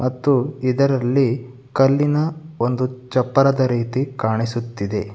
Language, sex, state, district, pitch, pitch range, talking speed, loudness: Kannada, male, Karnataka, Bangalore, 130 Hz, 120-135 Hz, 80 wpm, -20 LUFS